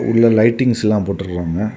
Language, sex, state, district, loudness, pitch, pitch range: Tamil, male, Tamil Nadu, Kanyakumari, -16 LUFS, 110 Hz, 100-115 Hz